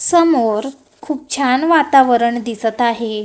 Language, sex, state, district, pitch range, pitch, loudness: Marathi, female, Maharashtra, Gondia, 230-300 Hz, 255 Hz, -15 LUFS